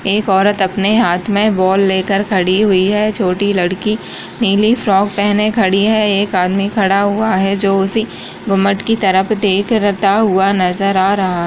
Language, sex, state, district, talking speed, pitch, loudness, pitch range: Kumaoni, female, Uttarakhand, Uttarkashi, 180 wpm, 200 Hz, -13 LUFS, 190-210 Hz